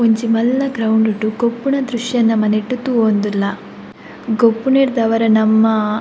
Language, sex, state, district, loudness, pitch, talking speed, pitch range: Tulu, female, Karnataka, Dakshina Kannada, -16 LUFS, 225 Hz, 110 wpm, 220-245 Hz